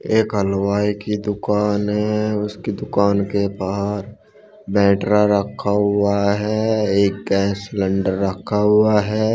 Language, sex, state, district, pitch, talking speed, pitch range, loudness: Hindi, male, Uttar Pradesh, Shamli, 105 Hz, 120 wpm, 100-105 Hz, -19 LUFS